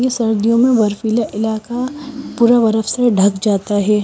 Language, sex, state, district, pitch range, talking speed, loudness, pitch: Hindi, female, Himachal Pradesh, Shimla, 210-240 Hz, 165 wpm, -15 LUFS, 220 Hz